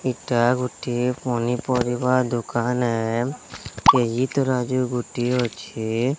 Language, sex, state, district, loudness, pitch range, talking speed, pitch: Odia, male, Odisha, Sambalpur, -22 LUFS, 120-125 Hz, 85 wpm, 125 Hz